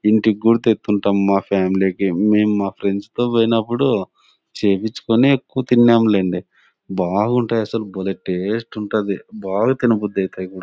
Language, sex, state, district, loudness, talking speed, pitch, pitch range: Telugu, male, Andhra Pradesh, Anantapur, -18 LUFS, 120 wpm, 105 Hz, 95-115 Hz